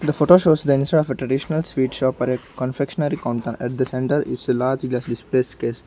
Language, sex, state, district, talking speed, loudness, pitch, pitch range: English, male, Arunachal Pradesh, Lower Dibang Valley, 215 wpm, -21 LUFS, 130 Hz, 125-150 Hz